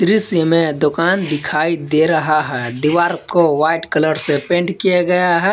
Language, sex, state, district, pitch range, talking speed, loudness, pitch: Hindi, male, Jharkhand, Palamu, 155-175 Hz, 175 wpm, -15 LUFS, 165 Hz